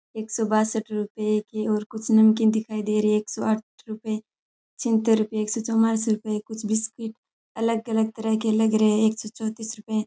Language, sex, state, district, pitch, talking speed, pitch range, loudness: Rajasthani, male, Rajasthan, Churu, 220 Hz, 215 wpm, 215-220 Hz, -24 LUFS